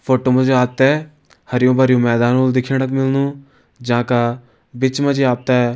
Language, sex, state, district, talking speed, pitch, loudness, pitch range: Hindi, male, Uttarakhand, Tehri Garhwal, 210 wpm, 130 Hz, -16 LUFS, 125-135 Hz